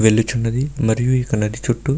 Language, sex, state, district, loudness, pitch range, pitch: Telugu, male, Karnataka, Bellary, -19 LUFS, 110-130 Hz, 120 Hz